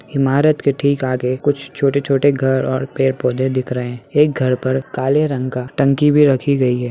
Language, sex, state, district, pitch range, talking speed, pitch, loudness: Hindi, male, Bihar, Saharsa, 130-140 Hz, 200 wpm, 135 Hz, -17 LUFS